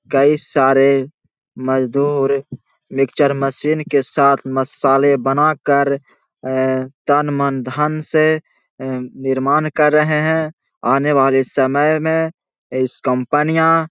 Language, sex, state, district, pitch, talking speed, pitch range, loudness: Hindi, male, Bihar, Jahanabad, 140 Hz, 115 wpm, 135-150 Hz, -16 LUFS